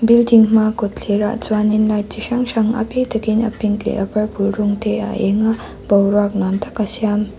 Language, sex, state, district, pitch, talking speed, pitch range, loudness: Mizo, female, Mizoram, Aizawl, 215 Hz, 220 wpm, 205-225 Hz, -17 LUFS